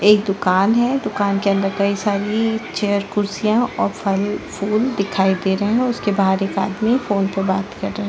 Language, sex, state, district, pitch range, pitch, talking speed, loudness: Hindi, female, Chhattisgarh, Sarguja, 195-215 Hz, 200 Hz, 210 wpm, -19 LUFS